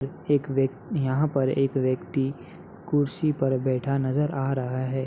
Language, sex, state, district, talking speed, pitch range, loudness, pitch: Hindi, male, Uttar Pradesh, Hamirpur, 155 wpm, 130-150 Hz, -26 LUFS, 135 Hz